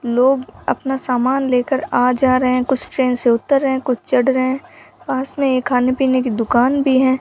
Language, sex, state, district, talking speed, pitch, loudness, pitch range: Hindi, female, Rajasthan, Bikaner, 215 wpm, 260 Hz, -17 LUFS, 250-265 Hz